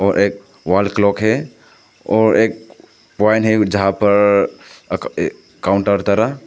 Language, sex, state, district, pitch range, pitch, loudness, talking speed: Hindi, male, Arunachal Pradesh, Papum Pare, 100-110 Hz, 100 Hz, -16 LUFS, 150 wpm